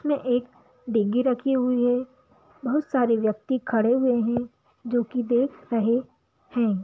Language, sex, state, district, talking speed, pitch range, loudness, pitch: Bhojpuri, female, Bihar, Saran, 140 wpm, 235-255 Hz, -24 LUFS, 245 Hz